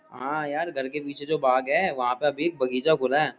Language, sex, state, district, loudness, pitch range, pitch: Hindi, male, Uttar Pradesh, Jyotiba Phule Nagar, -25 LUFS, 130-155 Hz, 145 Hz